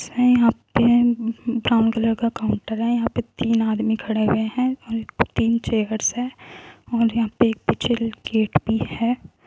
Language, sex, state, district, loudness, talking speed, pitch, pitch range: Hindi, female, Uttar Pradesh, Muzaffarnagar, -21 LUFS, 185 wpm, 230 Hz, 220-235 Hz